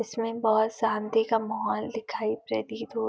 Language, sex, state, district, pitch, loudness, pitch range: Hindi, female, Uttar Pradesh, Etah, 220 Hz, -28 LUFS, 215-225 Hz